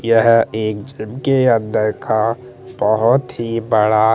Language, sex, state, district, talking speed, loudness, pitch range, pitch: Hindi, male, Chandigarh, Chandigarh, 115 wpm, -16 LUFS, 110-125 Hz, 115 Hz